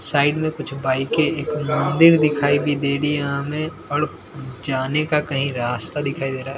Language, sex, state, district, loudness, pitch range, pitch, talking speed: Hindi, male, Bihar, Katihar, -20 LUFS, 135-150 Hz, 145 Hz, 180 wpm